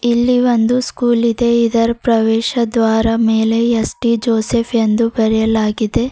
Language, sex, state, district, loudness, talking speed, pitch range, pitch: Kannada, female, Karnataka, Bidar, -14 LUFS, 110 wpm, 225-235 Hz, 230 Hz